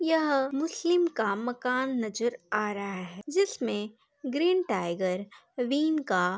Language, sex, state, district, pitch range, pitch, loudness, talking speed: Hindi, female, Uttar Pradesh, Hamirpur, 205-305 Hz, 250 Hz, -29 LUFS, 130 wpm